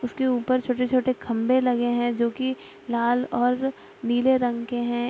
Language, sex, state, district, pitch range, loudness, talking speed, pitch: Hindi, female, Bihar, Araria, 240-255 Hz, -24 LUFS, 155 wpm, 245 Hz